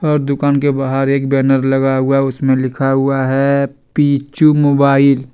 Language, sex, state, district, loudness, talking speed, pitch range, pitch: Hindi, male, Jharkhand, Deoghar, -14 LUFS, 180 wpm, 135-140 Hz, 135 Hz